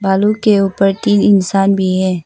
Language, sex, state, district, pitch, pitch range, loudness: Hindi, female, Arunachal Pradesh, Papum Pare, 195 Hz, 190-205 Hz, -13 LUFS